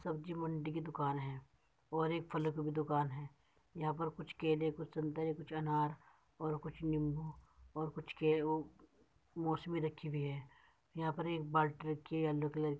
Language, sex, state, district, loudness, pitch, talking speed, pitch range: Hindi, male, Uttar Pradesh, Muzaffarnagar, -40 LUFS, 155 Hz, 190 wpm, 150-160 Hz